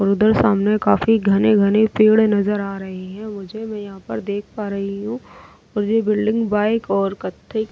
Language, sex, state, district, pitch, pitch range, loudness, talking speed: Hindi, female, Delhi, New Delhi, 210 Hz, 200-220 Hz, -19 LUFS, 185 wpm